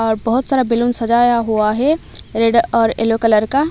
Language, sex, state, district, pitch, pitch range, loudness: Hindi, female, Odisha, Malkangiri, 230 Hz, 225-245 Hz, -15 LUFS